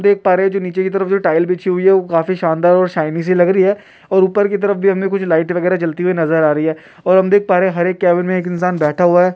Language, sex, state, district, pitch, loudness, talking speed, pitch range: Hindi, male, Uttar Pradesh, Deoria, 180 Hz, -15 LUFS, 310 wpm, 175-190 Hz